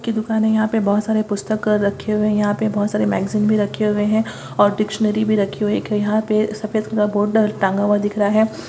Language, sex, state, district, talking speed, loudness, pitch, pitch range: Hindi, female, Bihar, Vaishali, 255 wpm, -19 LUFS, 210 Hz, 205-215 Hz